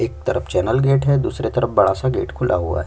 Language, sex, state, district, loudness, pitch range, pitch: Hindi, male, Chhattisgarh, Kabirdham, -19 LUFS, 95-130 Hz, 125 Hz